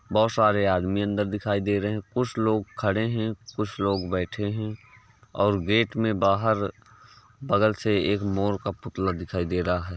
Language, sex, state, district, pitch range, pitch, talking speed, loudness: Hindi, male, Uttar Pradesh, Varanasi, 100-110 Hz, 105 Hz, 180 wpm, -25 LUFS